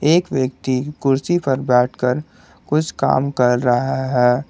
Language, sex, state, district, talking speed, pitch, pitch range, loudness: Hindi, male, Jharkhand, Garhwa, 135 wpm, 130 Hz, 125-150 Hz, -18 LUFS